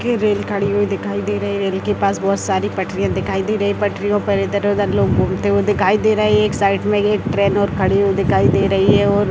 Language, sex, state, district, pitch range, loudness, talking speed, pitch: Hindi, female, Bihar, Madhepura, 195-205 Hz, -17 LUFS, 265 wpm, 200 Hz